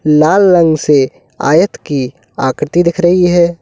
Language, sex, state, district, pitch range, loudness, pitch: Hindi, male, Uttar Pradesh, Lalitpur, 150-175 Hz, -11 LUFS, 165 Hz